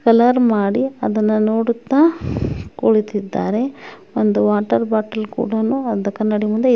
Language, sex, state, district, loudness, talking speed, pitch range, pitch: Kannada, female, Karnataka, Shimoga, -18 LUFS, 115 wpm, 210-240 Hz, 220 Hz